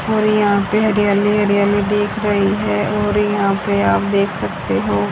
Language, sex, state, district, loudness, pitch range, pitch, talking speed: Hindi, female, Haryana, Jhajjar, -16 LUFS, 200-210 Hz, 205 Hz, 175 wpm